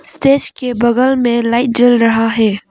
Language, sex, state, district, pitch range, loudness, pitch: Hindi, female, Arunachal Pradesh, Papum Pare, 230-255 Hz, -13 LUFS, 240 Hz